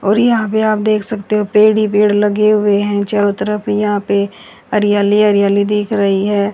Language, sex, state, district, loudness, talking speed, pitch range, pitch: Hindi, female, Haryana, Charkhi Dadri, -14 LUFS, 200 wpm, 205-210 Hz, 210 Hz